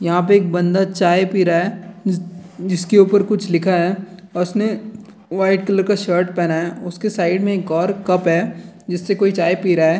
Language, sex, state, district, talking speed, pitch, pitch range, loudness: Hindi, male, Bihar, Jamui, 215 wpm, 185 Hz, 175-200 Hz, -17 LUFS